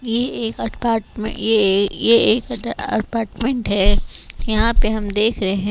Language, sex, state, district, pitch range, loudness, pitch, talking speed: Hindi, female, Chhattisgarh, Raipur, 205-230 Hz, -17 LUFS, 220 Hz, 160 wpm